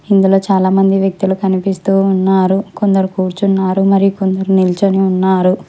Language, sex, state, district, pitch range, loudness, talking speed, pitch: Telugu, male, Telangana, Hyderabad, 190-195 Hz, -13 LUFS, 125 wpm, 190 Hz